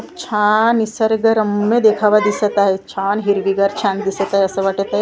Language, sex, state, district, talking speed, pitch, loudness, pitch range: Marathi, female, Maharashtra, Gondia, 165 wpm, 205 Hz, -16 LUFS, 195-215 Hz